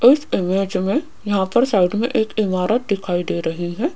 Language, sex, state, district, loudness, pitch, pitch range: Hindi, female, Rajasthan, Jaipur, -19 LUFS, 200 Hz, 185-240 Hz